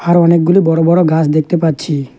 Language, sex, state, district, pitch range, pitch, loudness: Bengali, male, West Bengal, Alipurduar, 155-175 Hz, 165 Hz, -12 LUFS